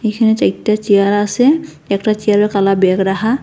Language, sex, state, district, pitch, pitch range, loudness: Bengali, female, Assam, Hailakandi, 210 Hz, 200-220 Hz, -14 LUFS